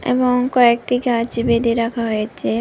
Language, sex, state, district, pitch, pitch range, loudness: Bengali, female, Tripura, West Tripura, 235 Hz, 230-250 Hz, -17 LUFS